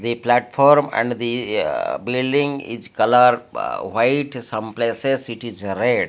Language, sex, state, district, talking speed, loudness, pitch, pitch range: English, male, Odisha, Malkangiri, 140 wpm, -19 LUFS, 120 Hz, 115-130 Hz